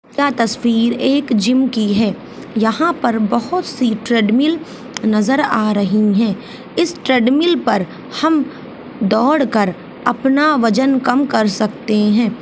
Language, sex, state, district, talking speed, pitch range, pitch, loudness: Hindi, female, Bihar, Saharsa, 130 wpm, 220-270 Hz, 240 Hz, -16 LUFS